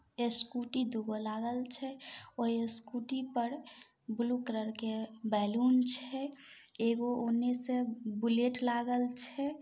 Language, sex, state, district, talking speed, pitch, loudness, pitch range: Maithili, female, Bihar, Samastipur, 105 wpm, 240 Hz, -35 LUFS, 230-250 Hz